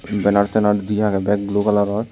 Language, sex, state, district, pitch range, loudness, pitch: Chakma, male, Tripura, West Tripura, 100-105 Hz, -18 LUFS, 105 Hz